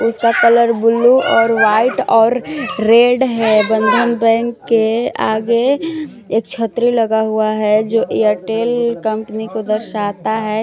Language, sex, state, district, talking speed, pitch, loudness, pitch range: Hindi, female, Jharkhand, Palamu, 130 wpm, 230 Hz, -14 LUFS, 220-240 Hz